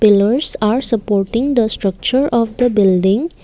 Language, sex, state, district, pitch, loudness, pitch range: English, female, Assam, Kamrup Metropolitan, 225 Hz, -15 LUFS, 205-245 Hz